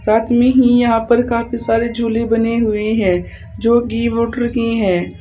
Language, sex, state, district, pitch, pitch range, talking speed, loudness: Hindi, female, Uttar Pradesh, Saharanpur, 230 Hz, 225-235 Hz, 185 wpm, -15 LUFS